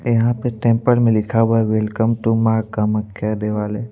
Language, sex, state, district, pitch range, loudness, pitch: Hindi, male, Madhya Pradesh, Bhopal, 105-115 Hz, -18 LUFS, 115 Hz